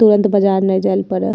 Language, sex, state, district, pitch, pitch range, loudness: Angika, female, Bihar, Bhagalpur, 195 Hz, 190-210 Hz, -15 LUFS